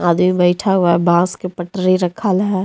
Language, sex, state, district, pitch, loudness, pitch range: Hindi, female, Jharkhand, Deoghar, 180 Hz, -16 LUFS, 175-190 Hz